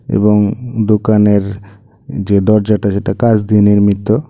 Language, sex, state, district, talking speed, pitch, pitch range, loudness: Bengali, male, Tripura, West Tripura, 110 wpm, 105 Hz, 100-110 Hz, -12 LUFS